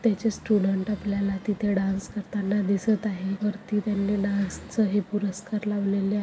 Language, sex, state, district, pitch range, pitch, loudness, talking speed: Marathi, female, Maharashtra, Sindhudurg, 200-210 Hz, 205 Hz, -27 LUFS, 145 wpm